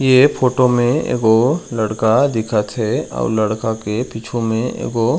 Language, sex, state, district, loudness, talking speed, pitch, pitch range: Chhattisgarhi, male, Chhattisgarh, Raigarh, -17 LUFS, 150 wpm, 115 Hz, 110-130 Hz